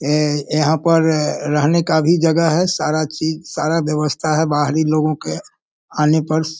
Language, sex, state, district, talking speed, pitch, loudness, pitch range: Hindi, male, Bihar, Sitamarhi, 175 wpm, 155 Hz, -17 LUFS, 150-160 Hz